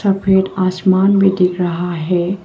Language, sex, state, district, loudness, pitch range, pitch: Hindi, female, Arunachal Pradesh, Papum Pare, -15 LUFS, 180-195 Hz, 185 Hz